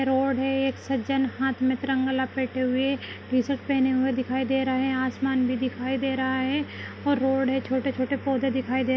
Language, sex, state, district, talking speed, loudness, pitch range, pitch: Kumaoni, female, Uttarakhand, Uttarkashi, 205 wpm, -26 LUFS, 260-270 Hz, 265 Hz